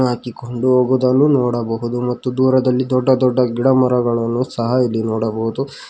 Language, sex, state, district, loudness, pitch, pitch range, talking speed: Kannada, male, Karnataka, Koppal, -17 LUFS, 125 Hz, 120-130 Hz, 110 wpm